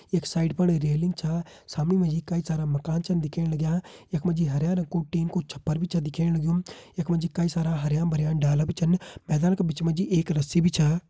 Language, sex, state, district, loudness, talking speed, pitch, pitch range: Hindi, male, Uttarakhand, Uttarkashi, -26 LUFS, 250 wpm, 165 Hz, 160-175 Hz